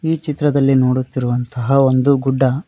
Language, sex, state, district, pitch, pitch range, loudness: Kannada, male, Karnataka, Koppal, 135 Hz, 130-140 Hz, -16 LUFS